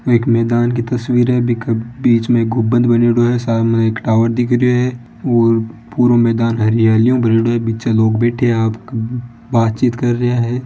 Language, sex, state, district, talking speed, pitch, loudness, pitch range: Marwari, male, Rajasthan, Nagaur, 175 wpm, 120 Hz, -15 LUFS, 115-120 Hz